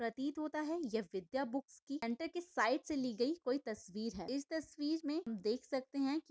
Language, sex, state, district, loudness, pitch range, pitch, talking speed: Hindi, female, Maharashtra, Aurangabad, -40 LUFS, 230-305 Hz, 275 Hz, 200 wpm